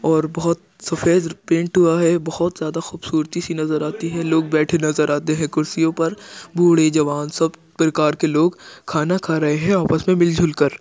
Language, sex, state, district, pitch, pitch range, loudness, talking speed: Hindi, male, Uttar Pradesh, Jyotiba Phule Nagar, 165 Hz, 155-170 Hz, -19 LUFS, 195 wpm